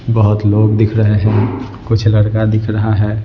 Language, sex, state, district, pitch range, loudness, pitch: Hindi, male, Bihar, Patna, 105-110 Hz, -13 LUFS, 110 Hz